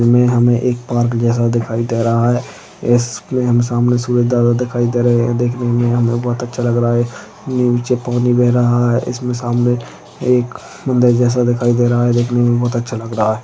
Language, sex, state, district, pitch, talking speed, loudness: Hindi, male, Maharashtra, Chandrapur, 120 Hz, 225 wpm, -15 LUFS